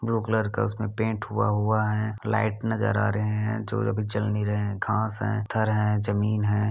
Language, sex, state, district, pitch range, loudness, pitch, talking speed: Hindi, male, Goa, North and South Goa, 105-110 Hz, -26 LUFS, 110 Hz, 225 wpm